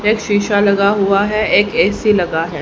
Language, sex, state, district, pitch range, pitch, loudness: Hindi, female, Haryana, Rohtak, 195-210 Hz, 205 Hz, -14 LUFS